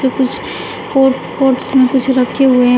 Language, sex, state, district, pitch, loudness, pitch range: Hindi, female, Uttar Pradesh, Shamli, 260 Hz, -13 LUFS, 255-265 Hz